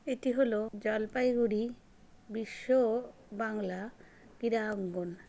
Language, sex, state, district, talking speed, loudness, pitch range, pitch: Bengali, female, West Bengal, Jalpaiguri, 70 wpm, -33 LUFS, 210-240 Hz, 225 Hz